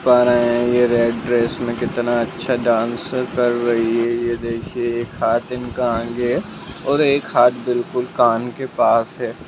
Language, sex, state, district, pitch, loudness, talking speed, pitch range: Hindi, male, Bihar, Jamui, 120 Hz, -19 LUFS, 150 wpm, 120-125 Hz